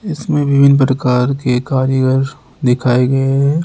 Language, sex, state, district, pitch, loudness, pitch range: Hindi, male, Rajasthan, Jaipur, 135 Hz, -14 LUFS, 125-140 Hz